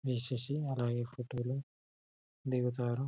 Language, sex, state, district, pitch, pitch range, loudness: Telugu, male, Telangana, Karimnagar, 125 Hz, 120-135 Hz, -37 LUFS